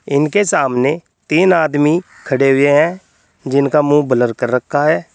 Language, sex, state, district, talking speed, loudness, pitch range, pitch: Hindi, male, Uttar Pradesh, Saharanpur, 150 wpm, -14 LUFS, 135-155 Hz, 145 Hz